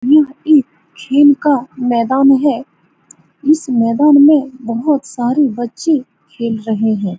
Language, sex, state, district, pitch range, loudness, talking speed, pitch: Hindi, female, Bihar, Saran, 235-290 Hz, -13 LUFS, 125 wpm, 270 Hz